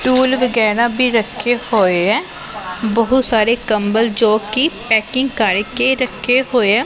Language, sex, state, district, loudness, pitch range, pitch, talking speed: Punjabi, female, Punjab, Pathankot, -15 LUFS, 215-255 Hz, 235 Hz, 140 wpm